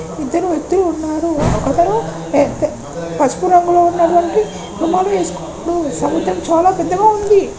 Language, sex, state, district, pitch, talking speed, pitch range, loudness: Telugu, male, Telangana, Karimnagar, 345 Hz, 120 wpm, 335-375 Hz, -15 LUFS